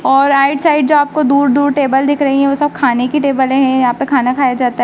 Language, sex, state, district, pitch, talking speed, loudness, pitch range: Hindi, female, Madhya Pradesh, Dhar, 275 Hz, 270 wpm, -12 LUFS, 260-285 Hz